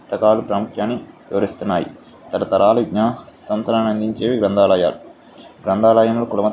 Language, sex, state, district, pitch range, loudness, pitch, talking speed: Telugu, male, Andhra Pradesh, Visakhapatnam, 100-115 Hz, -18 LUFS, 110 Hz, 90 wpm